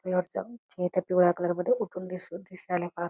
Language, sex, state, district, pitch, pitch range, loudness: Marathi, female, Karnataka, Belgaum, 180 Hz, 175-185 Hz, -29 LUFS